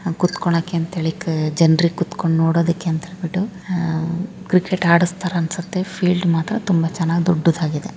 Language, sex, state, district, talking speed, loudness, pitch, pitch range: Kannada, female, Karnataka, Raichur, 120 wpm, -19 LUFS, 170 Hz, 165-180 Hz